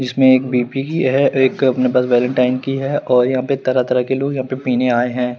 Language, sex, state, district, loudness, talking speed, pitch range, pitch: Hindi, male, Chandigarh, Chandigarh, -16 LUFS, 255 wpm, 125-135 Hz, 130 Hz